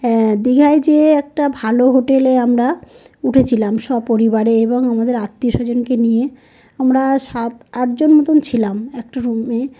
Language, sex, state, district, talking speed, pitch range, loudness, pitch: Bengali, male, West Bengal, North 24 Parganas, 135 wpm, 230-265 Hz, -15 LUFS, 250 Hz